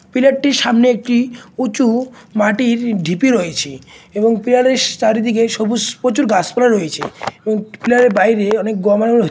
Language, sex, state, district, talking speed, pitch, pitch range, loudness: Bengali, male, West Bengal, Malda, 150 wpm, 230 Hz, 210-245 Hz, -15 LUFS